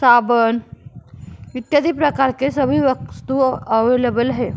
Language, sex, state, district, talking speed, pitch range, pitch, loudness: Hindi, female, Uttar Pradesh, Jyotiba Phule Nagar, 105 wpm, 240-275 Hz, 255 Hz, -17 LUFS